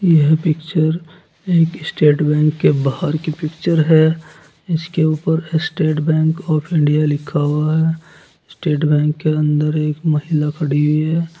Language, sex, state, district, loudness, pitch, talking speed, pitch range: Hindi, male, Uttar Pradesh, Saharanpur, -17 LUFS, 155 Hz, 145 wpm, 150-160 Hz